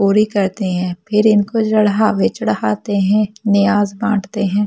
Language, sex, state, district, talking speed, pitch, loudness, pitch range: Hindi, female, Delhi, New Delhi, 155 wpm, 205 Hz, -16 LUFS, 195-215 Hz